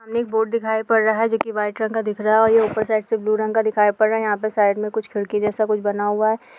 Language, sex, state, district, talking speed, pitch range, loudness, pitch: Hindi, female, Maharashtra, Aurangabad, 310 wpm, 210-220 Hz, -20 LUFS, 220 Hz